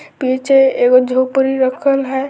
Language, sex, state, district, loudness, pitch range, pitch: Maithili, female, Bihar, Samastipur, -13 LUFS, 255-270 Hz, 265 Hz